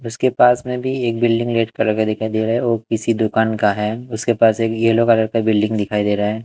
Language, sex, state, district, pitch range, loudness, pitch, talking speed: Hindi, male, Punjab, Kapurthala, 110-115 Hz, -17 LUFS, 115 Hz, 280 wpm